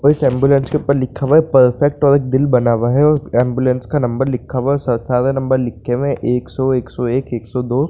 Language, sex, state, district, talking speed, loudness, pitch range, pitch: Hindi, male, Bihar, Saran, 250 wpm, -16 LUFS, 125-140 Hz, 130 Hz